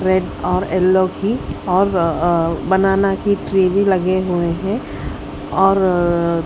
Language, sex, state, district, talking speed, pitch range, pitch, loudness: Hindi, female, Haryana, Charkhi Dadri, 120 wpm, 175-195 Hz, 185 Hz, -17 LUFS